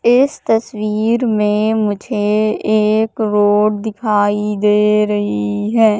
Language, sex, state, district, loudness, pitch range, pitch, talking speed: Hindi, female, Madhya Pradesh, Katni, -15 LUFS, 210-220 Hz, 210 Hz, 100 wpm